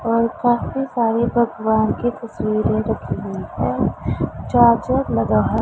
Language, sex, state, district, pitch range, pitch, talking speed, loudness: Hindi, female, Punjab, Pathankot, 220-240 Hz, 230 Hz, 130 wpm, -19 LUFS